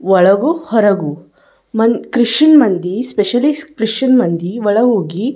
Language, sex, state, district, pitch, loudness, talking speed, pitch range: Kannada, female, Karnataka, Bijapur, 225 Hz, -13 LUFS, 125 wpm, 195-255 Hz